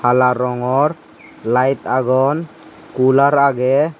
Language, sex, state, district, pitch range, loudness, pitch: Chakma, male, Tripura, Unakoti, 125-140 Hz, -16 LUFS, 130 Hz